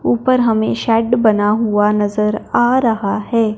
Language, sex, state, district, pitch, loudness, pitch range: Hindi, male, Punjab, Fazilka, 220 Hz, -15 LUFS, 210-230 Hz